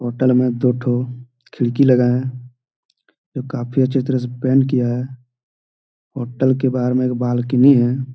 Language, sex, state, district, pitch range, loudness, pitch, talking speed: Hindi, male, Jharkhand, Jamtara, 125-130 Hz, -17 LUFS, 125 Hz, 155 wpm